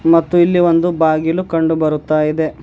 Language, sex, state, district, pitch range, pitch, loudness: Kannada, male, Karnataka, Bidar, 155-175 Hz, 165 Hz, -14 LUFS